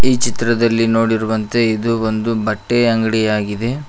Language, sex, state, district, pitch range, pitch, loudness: Kannada, male, Karnataka, Koppal, 110-115 Hz, 115 Hz, -16 LUFS